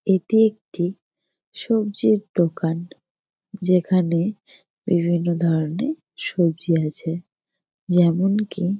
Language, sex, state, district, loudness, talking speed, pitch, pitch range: Bengali, female, West Bengal, Jalpaiguri, -21 LUFS, 75 wpm, 180 Hz, 170-205 Hz